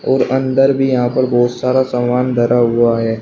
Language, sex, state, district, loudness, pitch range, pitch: Hindi, male, Uttar Pradesh, Shamli, -14 LUFS, 120-130 Hz, 125 Hz